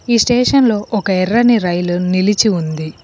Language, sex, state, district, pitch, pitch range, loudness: Telugu, female, Telangana, Komaram Bheem, 205 Hz, 175-235 Hz, -14 LUFS